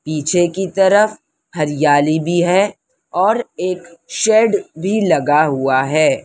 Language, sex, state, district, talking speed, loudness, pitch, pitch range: Hindi, female, Maharashtra, Mumbai Suburban, 125 wpm, -15 LUFS, 180 Hz, 155-210 Hz